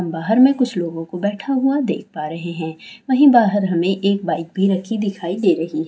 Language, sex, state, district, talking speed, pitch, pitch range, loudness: Hindi, female, Bihar, Saran, 225 wpm, 190 Hz, 170-225 Hz, -18 LUFS